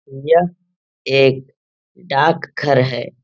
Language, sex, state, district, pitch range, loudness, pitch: Hindi, male, Bihar, Supaul, 130-170 Hz, -16 LUFS, 135 Hz